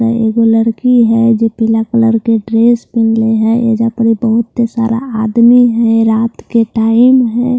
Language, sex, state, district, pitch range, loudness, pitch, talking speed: Hindi, female, Bihar, Katihar, 225-235 Hz, -11 LUFS, 230 Hz, 165 wpm